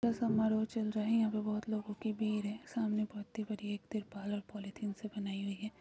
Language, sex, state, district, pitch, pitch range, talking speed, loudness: Hindi, female, Chhattisgarh, Jashpur, 215 Hz, 205-220 Hz, 240 wpm, -37 LUFS